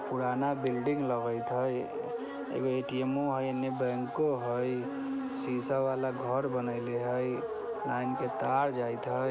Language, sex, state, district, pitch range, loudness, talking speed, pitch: Maithili, female, Bihar, Vaishali, 125-140 Hz, -32 LUFS, 135 wpm, 130 Hz